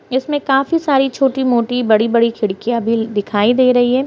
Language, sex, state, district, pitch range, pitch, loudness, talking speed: Hindi, female, Bihar, Saharsa, 230-270 Hz, 245 Hz, -15 LUFS, 175 wpm